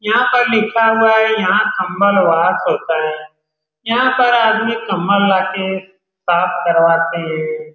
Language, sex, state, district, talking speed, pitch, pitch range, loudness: Hindi, male, Bihar, Saran, 155 wpm, 190 Hz, 165-220 Hz, -14 LUFS